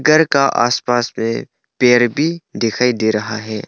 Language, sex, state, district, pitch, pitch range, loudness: Hindi, male, Arunachal Pradesh, Longding, 120 Hz, 115-140 Hz, -16 LUFS